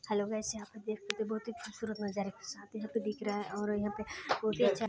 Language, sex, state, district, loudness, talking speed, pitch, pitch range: Hindi, female, Chhattisgarh, Balrampur, -37 LUFS, 305 wpm, 215 Hz, 210-220 Hz